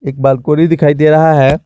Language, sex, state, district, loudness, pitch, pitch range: Hindi, male, Jharkhand, Garhwa, -10 LUFS, 150 Hz, 135-155 Hz